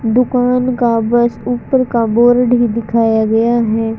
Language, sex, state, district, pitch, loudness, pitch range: Hindi, female, Haryana, Rohtak, 235 Hz, -13 LUFS, 225-245 Hz